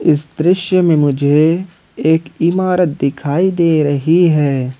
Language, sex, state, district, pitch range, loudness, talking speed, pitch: Hindi, male, Jharkhand, Ranchi, 145-175 Hz, -14 LUFS, 125 wpm, 160 Hz